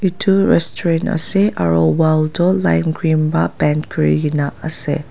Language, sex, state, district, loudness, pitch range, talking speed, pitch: Nagamese, female, Nagaland, Dimapur, -16 LUFS, 145-175 Hz, 165 wpm, 160 Hz